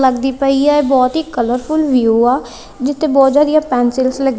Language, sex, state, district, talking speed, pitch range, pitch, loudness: Punjabi, female, Punjab, Kapurthala, 180 wpm, 250-290 Hz, 270 Hz, -13 LUFS